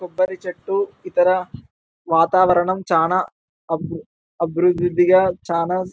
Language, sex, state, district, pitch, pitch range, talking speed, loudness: Telugu, male, Telangana, Karimnagar, 180 Hz, 170-185 Hz, 90 wpm, -19 LUFS